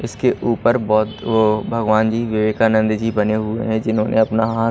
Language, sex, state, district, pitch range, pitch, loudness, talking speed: Hindi, male, Odisha, Malkangiri, 110-115 Hz, 110 Hz, -18 LUFS, 180 wpm